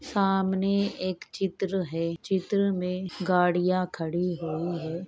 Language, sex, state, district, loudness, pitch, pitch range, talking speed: Hindi, female, Uttar Pradesh, Ghazipur, -28 LUFS, 185 Hz, 175-195 Hz, 140 wpm